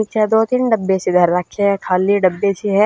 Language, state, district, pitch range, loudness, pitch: Haryanvi, Haryana, Rohtak, 185-215 Hz, -16 LUFS, 200 Hz